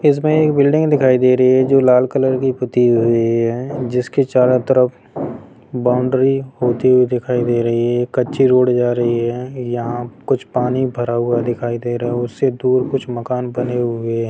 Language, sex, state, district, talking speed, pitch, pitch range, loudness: Hindi, male, Bihar, Sitamarhi, 160 wpm, 125 Hz, 120-130 Hz, -16 LUFS